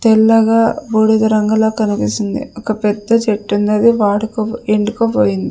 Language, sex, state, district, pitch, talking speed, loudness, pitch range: Telugu, female, Andhra Pradesh, Sri Satya Sai, 220 Hz, 110 wpm, -14 LUFS, 210-225 Hz